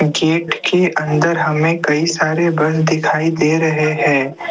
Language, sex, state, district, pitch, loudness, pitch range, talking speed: Hindi, male, Assam, Kamrup Metropolitan, 155 Hz, -15 LUFS, 150-165 Hz, 145 wpm